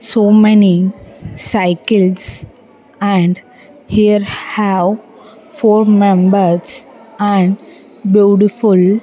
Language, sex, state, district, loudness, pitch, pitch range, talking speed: English, female, Andhra Pradesh, Sri Satya Sai, -12 LUFS, 205 Hz, 190-215 Hz, 75 wpm